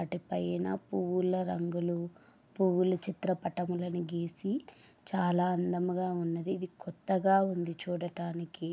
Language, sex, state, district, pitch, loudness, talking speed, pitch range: Telugu, female, Andhra Pradesh, Chittoor, 175 Hz, -33 LUFS, 95 wpm, 170-185 Hz